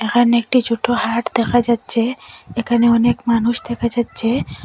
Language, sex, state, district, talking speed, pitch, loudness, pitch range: Bengali, female, Assam, Hailakandi, 140 wpm, 235 Hz, -17 LUFS, 230-240 Hz